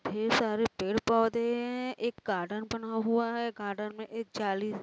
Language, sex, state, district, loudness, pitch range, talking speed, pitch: Hindi, female, Uttar Pradesh, Varanasi, -31 LUFS, 210-235 Hz, 160 wpm, 225 Hz